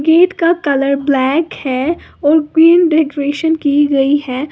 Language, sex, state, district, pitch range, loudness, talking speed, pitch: Hindi, female, Uttar Pradesh, Lalitpur, 280-325 Hz, -13 LUFS, 145 wpm, 295 Hz